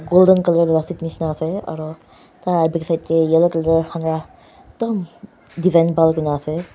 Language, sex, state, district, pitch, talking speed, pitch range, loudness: Nagamese, female, Nagaland, Dimapur, 165 Hz, 160 wpm, 160-175 Hz, -18 LUFS